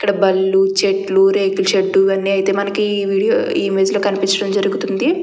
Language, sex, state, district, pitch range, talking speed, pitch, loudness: Telugu, female, Andhra Pradesh, Chittoor, 195-200 Hz, 125 wpm, 195 Hz, -16 LUFS